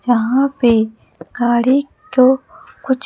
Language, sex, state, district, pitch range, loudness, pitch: Hindi, female, Chhattisgarh, Raipur, 235-265 Hz, -15 LUFS, 255 Hz